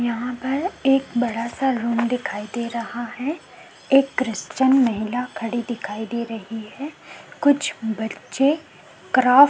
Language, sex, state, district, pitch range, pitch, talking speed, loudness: Hindi, female, Chhattisgarh, Kabirdham, 230-270 Hz, 245 Hz, 135 wpm, -23 LUFS